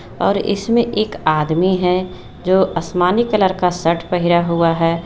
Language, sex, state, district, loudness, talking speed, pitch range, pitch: Hindi, female, Jharkhand, Garhwa, -17 LUFS, 155 wpm, 165-190 Hz, 180 Hz